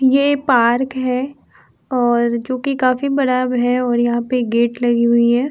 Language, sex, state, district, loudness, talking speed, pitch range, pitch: Hindi, female, Uttar Pradesh, Muzaffarnagar, -17 LUFS, 185 wpm, 240-260 Hz, 250 Hz